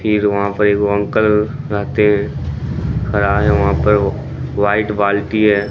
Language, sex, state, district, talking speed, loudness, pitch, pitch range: Hindi, male, Bihar, Katihar, 105 wpm, -16 LUFS, 105 Hz, 100-105 Hz